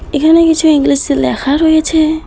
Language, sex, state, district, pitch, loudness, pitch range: Bengali, female, West Bengal, Alipurduar, 315 Hz, -11 LUFS, 285-320 Hz